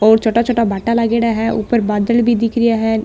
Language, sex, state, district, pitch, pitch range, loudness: Marwari, female, Rajasthan, Nagaur, 230 Hz, 220-235 Hz, -15 LUFS